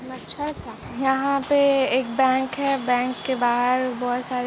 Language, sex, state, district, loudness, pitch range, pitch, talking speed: Hindi, female, Bihar, East Champaran, -22 LUFS, 250-275 Hz, 260 Hz, 135 wpm